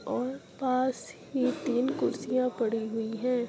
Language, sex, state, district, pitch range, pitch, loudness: Hindi, female, Uttar Pradesh, Jyotiba Phule Nagar, 240-255 Hz, 250 Hz, -30 LUFS